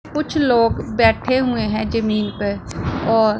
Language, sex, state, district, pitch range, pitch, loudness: Hindi, female, Punjab, Pathankot, 215-250 Hz, 225 Hz, -19 LUFS